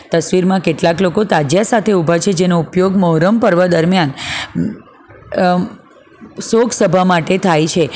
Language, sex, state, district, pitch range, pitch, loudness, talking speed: Gujarati, female, Gujarat, Valsad, 170-200 Hz, 185 Hz, -13 LUFS, 135 wpm